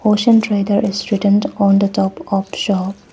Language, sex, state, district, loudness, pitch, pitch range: English, female, Arunachal Pradesh, Papum Pare, -16 LUFS, 200 Hz, 195-205 Hz